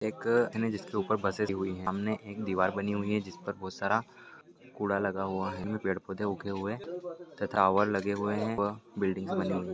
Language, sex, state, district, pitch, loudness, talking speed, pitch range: Hindi, male, Maharashtra, Pune, 100 Hz, -32 LUFS, 210 wpm, 95-110 Hz